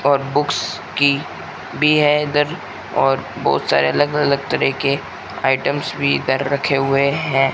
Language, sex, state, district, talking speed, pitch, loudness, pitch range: Hindi, male, Rajasthan, Bikaner, 150 wpm, 140 Hz, -18 LUFS, 135-145 Hz